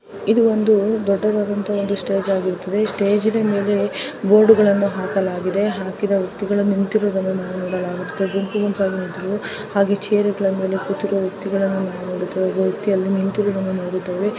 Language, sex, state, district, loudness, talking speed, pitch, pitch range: Kannada, female, Karnataka, Dharwad, -20 LUFS, 100 wpm, 195 Hz, 190-205 Hz